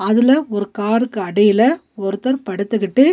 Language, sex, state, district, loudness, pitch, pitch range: Tamil, female, Tamil Nadu, Nilgiris, -17 LUFS, 220 Hz, 205-255 Hz